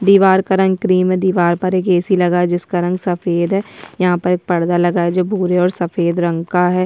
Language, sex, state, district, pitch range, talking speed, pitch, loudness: Hindi, female, Bihar, Kishanganj, 175-185 Hz, 220 wpm, 180 Hz, -15 LUFS